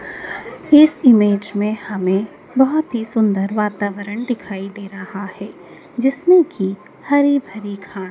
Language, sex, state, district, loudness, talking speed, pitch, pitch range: Hindi, female, Madhya Pradesh, Dhar, -17 LUFS, 125 wpm, 215 Hz, 200-280 Hz